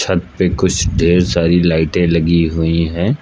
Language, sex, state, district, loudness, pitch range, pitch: Hindi, male, Uttar Pradesh, Lucknow, -14 LUFS, 85-90 Hz, 85 Hz